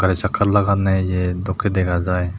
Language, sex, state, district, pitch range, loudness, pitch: Chakma, male, Tripura, Dhalai, 90-100 Hz, -19 LUFS, 95 Hz